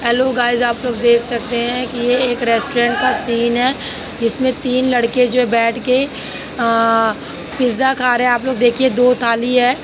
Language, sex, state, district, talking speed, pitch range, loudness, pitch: Hindi, female, Uttar Pradesh, Jalaun, 200 wpm, 235-250 Hz, -16 LUFS, 245 Hz